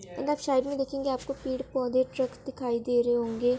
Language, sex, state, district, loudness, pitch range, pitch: Hindi, female, Bihar, East Champaran, -29 LUFS, 245-275 Hz, 260 Hz